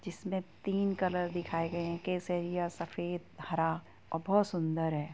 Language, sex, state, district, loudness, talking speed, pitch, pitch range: Hindi, female, Uttar Pradesh, Jyotiba Phule Nagar, -34 LUFS, 130 wpm, 175 Hz, 165-185 Hz